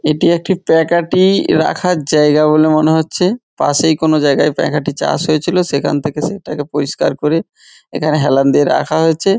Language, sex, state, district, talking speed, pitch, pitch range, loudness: Bengali, male, West Bengal, Dakshin Dinajpur, 155 wpm, 155 Hz, 150-170 Hz, -14 LUFS